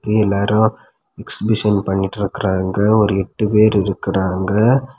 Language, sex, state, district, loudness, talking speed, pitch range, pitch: Tamil, male, Tamil Nadu, Kanyakumari, -17 LUFS, 95 wpm, 95-110 Hz, 105 Hz